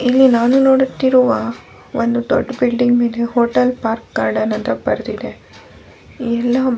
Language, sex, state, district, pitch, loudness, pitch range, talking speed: Kannada, female, Karnataka, Bellary, 245 Hz, -16 LUFS, 235-260 Hz, 105 wpm